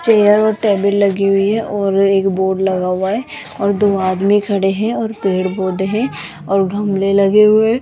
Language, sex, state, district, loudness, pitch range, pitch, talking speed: Hindi, female, Rajasthan, Jaipur, -15 LUFS, 190-210 Hz, 200 Hz, 200 wpm